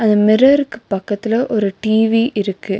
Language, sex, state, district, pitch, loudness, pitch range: Tamil, female, Tamil Nadu, Nilgiris, 215 Hz, -15 LUFS, 205-225 Hz